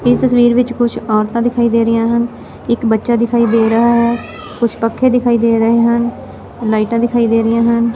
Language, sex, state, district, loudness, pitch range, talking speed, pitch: Punjabi, female, Punjab, Fazilka, -13 LUFS, 230-240 Hz, 195 wpm, 235 Hz